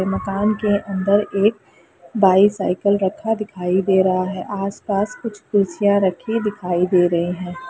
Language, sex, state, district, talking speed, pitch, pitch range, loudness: Hindi, female, Bihar, Lakhisarai, 150 wpm, 195 Hz, 185-205 Hz, -19 LUFS